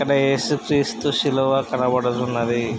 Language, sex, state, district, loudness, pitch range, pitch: Telugu, male, Andhra Pradesh, Krishna, -21 LUFS, 120-140 Hz, 135 Hz